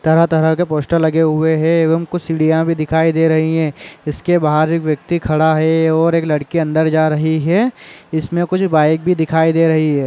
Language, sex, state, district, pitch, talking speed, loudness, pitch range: Hindi, male, Chhattisgarh, Korba, 160 Hz, 210 wpm, -15 LUFS, 155-165 Hz